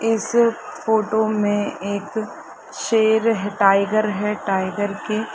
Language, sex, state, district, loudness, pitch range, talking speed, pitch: Hindi, female, Chhattisgarh, Bilaspur, -20 LUFS, 205-220 Hz, 110 wpm, 215 Hz